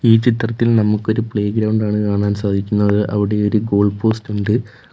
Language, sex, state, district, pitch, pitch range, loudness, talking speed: Malayalam, male, Kerala, Kollam, 105 Hz, 105-110 Hz, -17 LUFS, 145 wpm